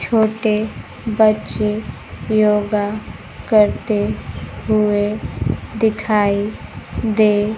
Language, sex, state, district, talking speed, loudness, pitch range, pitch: Hindi, female, Bihar, Kaimur, 55 wpm, -18 LUFS, 210-220 Hz, 215 Hz